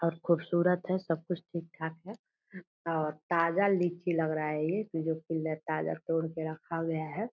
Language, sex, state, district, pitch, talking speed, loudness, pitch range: Hindi, female, Bihar, Purnia, 165 Hz, 170 wpm, -32 LUFS, 160-175 Hz